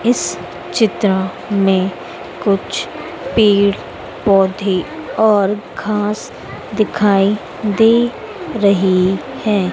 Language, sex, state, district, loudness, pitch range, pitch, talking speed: Hindi, female, Madhya Pradesh, Dhar, -16 LUFS, 195-215 Hz, 200 Hz, 75 wpm